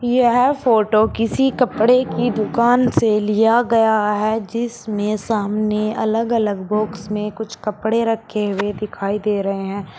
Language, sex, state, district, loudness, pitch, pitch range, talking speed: Hindi, female, Uttar Pradesh, Shamli, -18 LUFS, 220 Hz, 210-235 Hz, 145 wpm